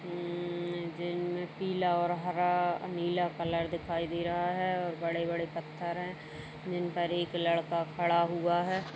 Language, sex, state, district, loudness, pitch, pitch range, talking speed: Hindi, female, Chhattisgarh, Kabirdham, -33 LUFS, 175 Hz, 170-175 Hz, 135 wpm